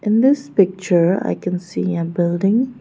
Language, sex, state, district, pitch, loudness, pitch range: English, female, Arunachal Pradesh, Lower Dibang Valley, 190 Hz, -18 LUFS, 175-230 Hz